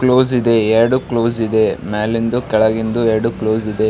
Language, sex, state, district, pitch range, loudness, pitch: Kannada, male, Karnataka, Raichur, 110-120 Hz, -16 LUFS, 115 Hz